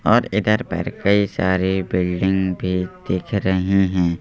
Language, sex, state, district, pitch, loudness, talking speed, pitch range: Hindi, male, Madhya Pradesh, Bhopal, 95 Hz, -20 LUFS, 140 wpm, 90-95 Hz